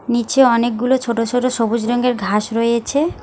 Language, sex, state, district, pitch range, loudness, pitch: Bengali, female, West Bengal, Alipurduar, 230-250 Hz, -17 LUFS, 235 Hz